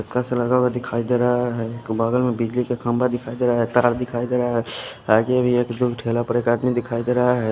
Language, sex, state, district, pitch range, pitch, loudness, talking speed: Hindi, male, Himachal Pradesh, Shimla, 115-125 Hz, 120 Hz, -21 LUFS, 255 wpm